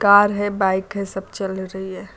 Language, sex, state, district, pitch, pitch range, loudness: Hindi, female, Uttar Pradesh, Lucknow, 195 Hz, 190-200 Hz, -21 LUFS